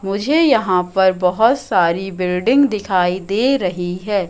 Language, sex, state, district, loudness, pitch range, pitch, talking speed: Hindi, female, Madhya Pradesh, Katni, -16 LUFS, 180-225 Hz, 190 Hz, 140 wpm